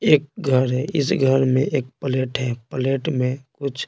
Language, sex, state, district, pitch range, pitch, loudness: Hindi, male, Bihar, Patna, 130-140 Hz, 130 Hz, -21 LUFS